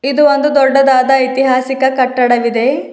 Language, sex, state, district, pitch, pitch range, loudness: Kannada, female, Karnataka, Bidar, 265 Hz, 255-275 Hz, -11 LUFS